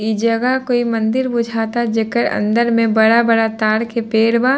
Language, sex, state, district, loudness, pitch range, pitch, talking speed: Bhojpuri, female, Bihar, Saran, -16 LUFS, 220-235 Hz, 230 Hz, 170 wpm